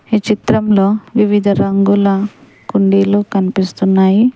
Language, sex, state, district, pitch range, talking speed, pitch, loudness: Telugu, female, Telangana, Mahabubabad, 195-215 Hz, 80 wpm, 200 Hz, -13 LUFS